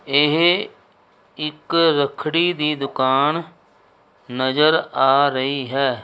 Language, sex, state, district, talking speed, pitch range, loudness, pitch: Punjabi, male, Punjab, Kapurthala, 90 wpm, 135-160 Hz, -19 LUFS, 145 Hz